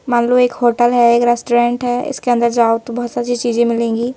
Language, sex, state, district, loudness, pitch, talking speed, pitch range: Hindi, female, Madhya Pradesh, Bhopal, -15 LUFS, 240 Hz, 230 wpm, 235-245 Hz